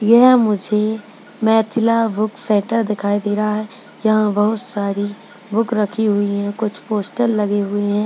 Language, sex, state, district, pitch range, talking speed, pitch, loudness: Hindi, female, Bihar, Purnia, 205-220 Hz, 155 wpm, 210 Hz, -18 LUFS